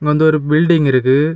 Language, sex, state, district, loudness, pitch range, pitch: Tamil, male, Tamil Nadu, Kanyakumari, -13 LUFS, 145-155 Hz, 150 Hz